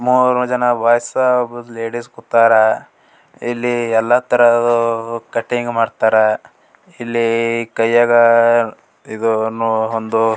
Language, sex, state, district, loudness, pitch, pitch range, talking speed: Kannada, male, Karnataka, Gulbarga, -15 LUFS, 115 Hz, 115-120 Hz, 100 wpm